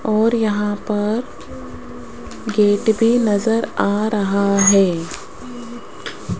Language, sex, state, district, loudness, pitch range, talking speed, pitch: Hindi, female, Rajasthan, Jaipur, -17 LUFS, 205-225 Hz, 85 wpm, 210 Hz